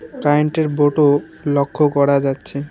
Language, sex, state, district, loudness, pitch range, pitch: Bengali, male, West Bengal, Alipurduar, -17 LUFS, 140-150 Hz, 145 Hz